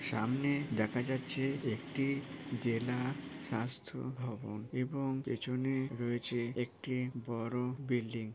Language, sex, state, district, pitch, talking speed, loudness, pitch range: Bengali, male, West Bengal, Paschim Medinipur, 125 Hz, 100 wpm, -37 LUFS, 120-135 Hz